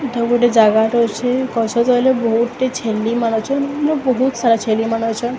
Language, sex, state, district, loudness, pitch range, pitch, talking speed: Odia, female, Odisha, Sambalpur, -16 LUFS, 225-260 Hz, 235 Hz, 80 wpm